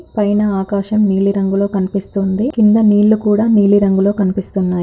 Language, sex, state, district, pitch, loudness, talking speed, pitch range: Telugu, female, Andhra Pradesh, Anantapur, 200 Hz, -14 LUFS, 135 wpm, 195-210 Hz